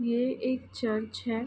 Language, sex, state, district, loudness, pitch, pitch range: Hindi, female, Uttar Pradesh, Ghazipur, -31 LUFS, 235 Hz, 225-250 Hz